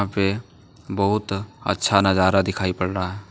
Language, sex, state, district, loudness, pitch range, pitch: Hindi, male, Jharkhand, Deoghar, -22 LUFS, 95-105 Hz, 100 Hz